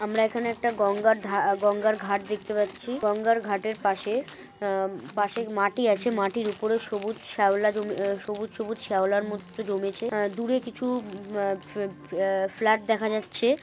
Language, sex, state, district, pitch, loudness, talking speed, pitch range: Bengali, female, West Bengal, North 24 Parganas, 210 Hz, -27 LUFS, 160 wpm, 200-225 Hz